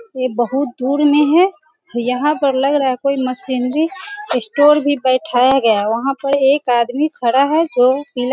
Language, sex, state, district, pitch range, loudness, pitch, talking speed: Hindi, female, Bihar, Sitamarhi, 250-295 Hz, -15 LUFS, 270 Hz, 180 wpm